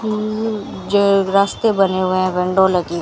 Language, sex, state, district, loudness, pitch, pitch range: Hindi, female, Rajasthan, Bikaner, -17 LUFS, 195 Hz, 185-210 Hz